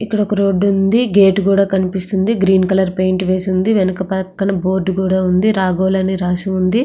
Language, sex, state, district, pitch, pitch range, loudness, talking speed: Telugu, female, Andhra Pradesh, Srikakulam, 190 Hz, 185-195 Hz, -15 LUFS, 165 wpm